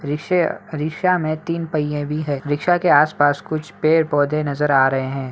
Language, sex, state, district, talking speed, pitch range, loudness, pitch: Hindi, male, Bihar, Begusarai, 180 wpm, 145-160 Hz, -19 LUFS, 150 Hz